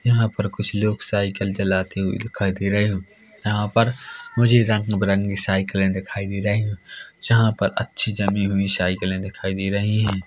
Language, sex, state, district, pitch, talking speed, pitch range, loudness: Hindi, male, Chhattisgarh, Korba, 100 Hz, 180 wpm, 95-105 Hz, -22 LUFS